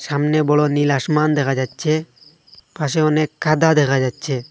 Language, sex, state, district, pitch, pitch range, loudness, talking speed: Bengali, male, Assam, Hailakandi, 150 Hz, 140-155 Hz, -18 LUFS, 145 wpm